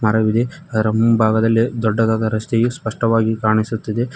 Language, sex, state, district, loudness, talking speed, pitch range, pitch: Kannada, male, Karnataka, Koppal, -17 LUFS, 115 wpm, 110-115 Hz, 110 Hz